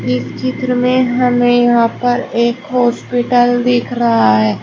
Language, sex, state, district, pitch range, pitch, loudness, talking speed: Hindi, female, Uttar Pradesh, Shamli, 235-250 Hz, 245 Hz, -13 LUFS, 140 wpm